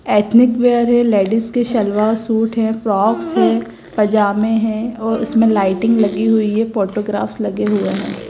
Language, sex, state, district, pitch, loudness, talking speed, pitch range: Hindi, female, Gujarat, Gandhinagar, 220 Hz, -16 LUFS, 160 wpm, 210-225 Hz